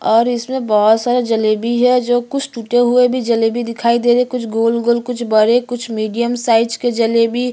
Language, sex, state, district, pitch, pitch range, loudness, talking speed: Hindi, female, Chhattisgarh, Bastar, 235 Hz, 230-245 Hz, -15 LUFS, 225 wpm